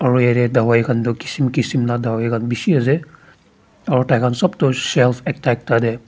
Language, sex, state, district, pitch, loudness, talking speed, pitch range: Nagamese, male, Nagaland, Dimapur, 125 Hz, -17 LUFS, 195 wpm, 120-135 Hz